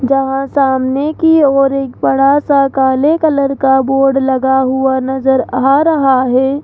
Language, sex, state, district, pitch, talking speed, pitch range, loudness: Hindi, male, Rajasthan, Jaipur, 270 Hz, 155 wpm, 265-280 Hz, -12 LUFS